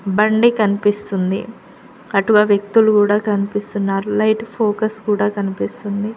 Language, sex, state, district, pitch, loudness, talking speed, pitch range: Telugu, female, Telangana, Mahabubabad, 210 Hz, -17 LUFS, 95 wpm, 200-215 Hz